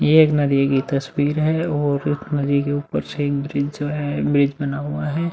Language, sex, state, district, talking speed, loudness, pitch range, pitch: Hindi, male, Uttar Pradesh, Muzaffarnagar, 215 wpm, -20 LUFS, 140-150 Hz, 145 Hz